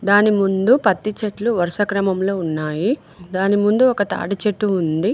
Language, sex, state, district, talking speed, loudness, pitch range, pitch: Telugu, female, Telangana, Mahabubabad, 140 wpm, -18 LUFS, 185-210 Hz, 200 Hz